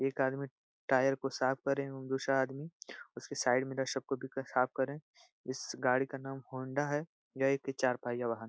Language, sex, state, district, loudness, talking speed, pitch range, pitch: Hindi, male, Bihar, Supaul, -35 LUFS, 205 wpm, 130-135 Hz, 135 Hz